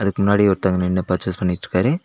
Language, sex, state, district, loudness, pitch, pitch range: Tamil, male, Tamil Nadu, Nilgiris, -19 LUFS, 95 Hz, 90-100 Hz